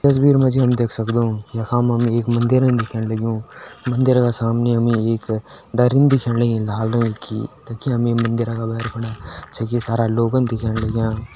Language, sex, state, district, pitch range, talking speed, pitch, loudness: Hindi, male, Uttarakhand, Tehri Garhwal, 115-120 Hz, 185 wpm, 115 Hz, -19 LUFS